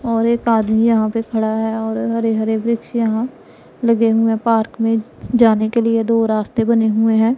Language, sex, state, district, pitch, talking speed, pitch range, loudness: Hindi, female, Punjab, Pathankot, 225 Hz, 185 wpm, 220-230 Hz, -17 LUFS